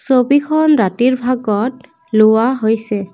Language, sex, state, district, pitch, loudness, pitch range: Assamese, female, Assam, Kamrup Metropolitan, 250 Hz, -14 LUFS, 220-265 Hz